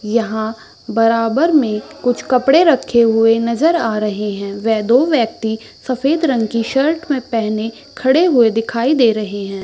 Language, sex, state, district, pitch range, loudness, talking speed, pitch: Hindi, female, Chhattisgarh, Raigarh, 220-270 Hz, -15 LUFS, 160 wpm, 230 Hz